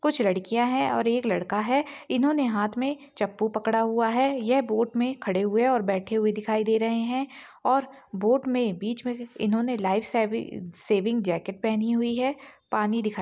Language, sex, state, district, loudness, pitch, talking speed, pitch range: Hindi, female, Chhattisgarh, Rajnandgaon, -26 LUFS, 230 Hz, 185 wpm, 215-255 Hz